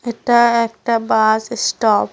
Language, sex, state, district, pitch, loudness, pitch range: Bengali, female, West Bengal, Cooch Behar, 230 Hz, -16 LUFS, 225-235 Hz